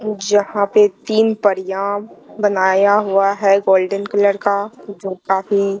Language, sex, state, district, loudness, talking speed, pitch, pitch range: Hindi, female, Bihar, Katihar, -16 LUFS, 125 wpm, 200 Hz, 195-205 Hz